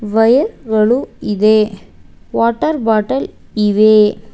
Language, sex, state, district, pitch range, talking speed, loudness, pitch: Kannada, female, Karnataka, Bangalore, 210-230 Hz, 85 wpm, -14 LUFS, 215 Hz